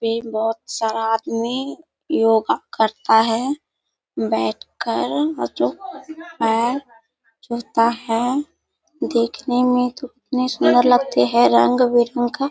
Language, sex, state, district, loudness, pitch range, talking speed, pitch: Hindi, female, Bihar, Kishanganj, -19 LUFS, 225-260 Hz, 90 wpm, 235 Hz